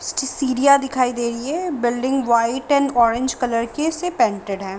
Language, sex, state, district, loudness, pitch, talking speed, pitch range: Hindi, female, Bihar, Sitamarhi, -19 LUFS, 255 Hz, 190 wpm, 235-280 Hz